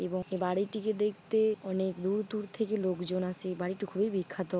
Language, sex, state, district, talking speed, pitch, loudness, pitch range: Bengali, female, West Bengal, Paschim Medinipur, 185 wpm, 190 Hz, -32 LUFS, 185-210 Hz